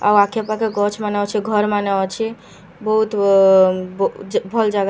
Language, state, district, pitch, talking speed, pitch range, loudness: Sambalpuri, Odisha, Sambalpur, 205 Hz, 110 wpm, 195-215 Hz, -17 LUFS